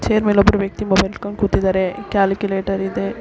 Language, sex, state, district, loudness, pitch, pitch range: Kannada, female, Karnataka, Belgaum, -18 LUFS, 195 Hz, 190-200 Hz